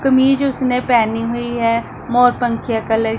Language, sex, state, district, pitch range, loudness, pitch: Hindi, female, Punjab, Pathankot, 230-250 Hz, -16 LUFS, 240 Hz